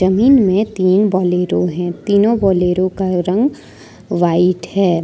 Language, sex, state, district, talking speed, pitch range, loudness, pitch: Hindi, female, Jharkhand, Deoghar, 130 wpm, 180-200 Hz, -15 LUFS, 185 Hz